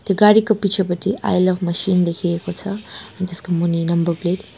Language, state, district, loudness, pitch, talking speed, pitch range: Nepali, West Bengal, Darjeeling, -18 LUFS, 180 Hz, 185 wpm, 175-200 Hz